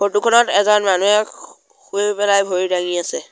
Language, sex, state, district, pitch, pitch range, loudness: Assamese, male, Assam, Sonitpur, 205 Hz, 185-210 Hz, -16 LUFS